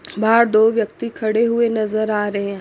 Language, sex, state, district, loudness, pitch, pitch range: Hindi, female, Chandigarh, Chandigarh, -18 LUFS, 220 Hz, 210-230 Hz